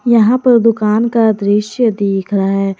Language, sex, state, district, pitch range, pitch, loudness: Hindi, female, Jharkhand, Garhwa, 200-235 Hz, 215 Hz, -13 LUFS